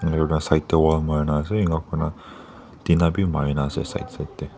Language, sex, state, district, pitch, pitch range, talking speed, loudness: Nagamese, male, Nagaland, Dimapur, 80 Hz, 75-80 Hz, 250 wpm, -22 LUFS